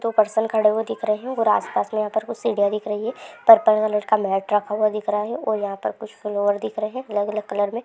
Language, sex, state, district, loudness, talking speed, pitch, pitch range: Hindi, male, West Bengal, Jalpaiguri, -21 LUFS, 275 wpm, 215 Hz, 210-220 Hz